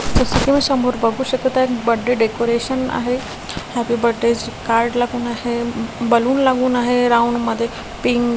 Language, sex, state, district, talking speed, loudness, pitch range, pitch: Marathi, female, Maharashtra, Washim, 135 wpm, -18 LUFS, 235-250 Hz, 240 Hz